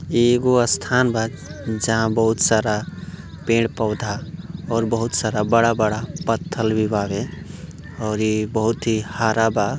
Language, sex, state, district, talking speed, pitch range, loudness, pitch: Bhojpuri, male, Uttar Pradesh, Gorakhpur, 120 wpm, 110-115 Hz, -20 LUFS, 110 Hz